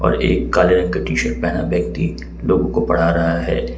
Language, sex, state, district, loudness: Hindi, male, Jharkhand, Ranchi, -18 LUFS